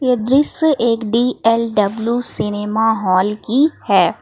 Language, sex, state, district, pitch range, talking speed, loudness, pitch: Hindi, female, Jharkhand, Palamu, 215-250 Hz, 115 wpm, -16 LUFS, 230 Hz